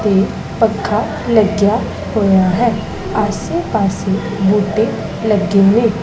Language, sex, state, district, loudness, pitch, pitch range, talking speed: Punjabi, female, Punjab, Pathankot, -15 LUFS, 205 Hz, 195-215 Hz, 100 wpm